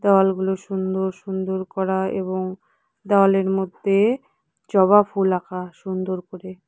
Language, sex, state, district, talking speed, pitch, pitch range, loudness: Bengali, female, West Bengal, Cooch Behar, 110 wpm, 190 Hz, 185-195 Hz, -21 LUFS